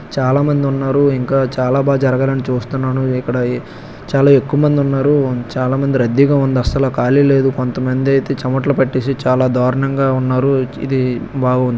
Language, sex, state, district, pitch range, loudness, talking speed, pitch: Telugu, male, Andhra Pradesh, Krishna, 130-135 Hz, -15 LUFS, 145 wpm, 135 Hz